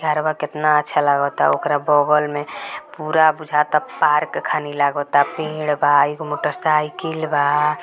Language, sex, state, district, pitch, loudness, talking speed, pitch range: Bhojpuri, female, Bihar, Gopalganj, 150 Hz, -18 LUFS, 145 wpm, 145-155 Hz